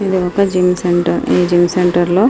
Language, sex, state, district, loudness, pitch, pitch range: Telugu, female, Andhra Pradesh, Srikakulam, -14 LUFS, 180 Hz, 175-185 Hz